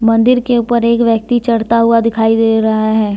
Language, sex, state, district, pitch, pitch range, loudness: Hindi, female, Jharkhand, Deoghar, 230 Hz, 225-235 Hz, -12 LUFS